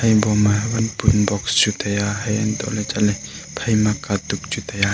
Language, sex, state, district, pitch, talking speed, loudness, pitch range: Wancho, male, Arunachal Pradesh, Longding, 105 Hz, 135 wpm, -20 LUFS, 100-110 Hz